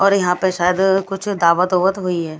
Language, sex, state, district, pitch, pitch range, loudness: Hindi, female, Delhi, New Delhi, 185 Hz, 180-195 Hz, -17 LUFS